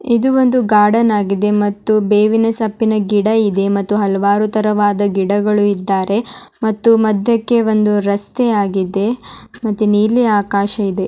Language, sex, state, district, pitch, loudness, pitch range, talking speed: Kannada, male, Karnataka, Dharwad, 210 Hz, -14 LUFS, 200-225 Hz, 120 wpm